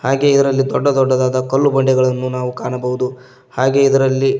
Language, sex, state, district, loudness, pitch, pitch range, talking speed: Kannada, male, Karnataka, Koppal, -15 LUFS, 130 Hz, 130-135 Hz, 150 wpm